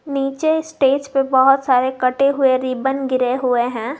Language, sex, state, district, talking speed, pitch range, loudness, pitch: Hindi, female, Jharkhand, Garhwa, 165 wpm, 255-275 Hz, -17 LUFS, 265 Hz